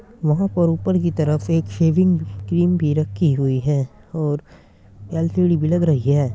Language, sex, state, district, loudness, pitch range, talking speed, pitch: Hindi, male, Uttar Pradesh, Muzaffarnagar, -19 LUFS, 145-175 Hz, 170 wpm, 160 Hz